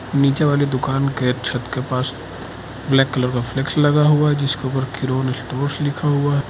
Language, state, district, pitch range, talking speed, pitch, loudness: Hindi, Arunachal Pradesh, Lower Dibang Valley, 130-145 Hz, 195 wpm, 135 Hz, -19 LUFS